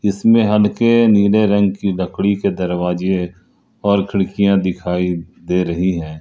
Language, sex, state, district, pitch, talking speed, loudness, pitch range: Hindi, male, Jharkhand, Ranchi, 95 Hz, 135 wpm, -16 LUFS, 90-100 Hz